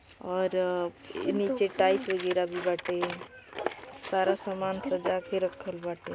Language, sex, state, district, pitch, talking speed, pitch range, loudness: Bhojpuri, female, Uttar Pradesh, Gorakhpur, 185 Hz, 135 wpm, 175-190 Hz, -30 LUFS